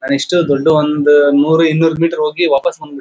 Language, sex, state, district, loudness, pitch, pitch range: Kannada, male, Karnataka, Bellary, -12 LUFS, 155 Hz, 145-165 Hz